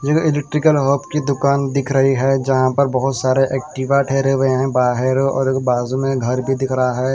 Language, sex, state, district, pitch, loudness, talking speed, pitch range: Hindi, male, Haryana, Rohtak, 135 Hz, -17 LUFS, 200 wpm, 130-140 Hz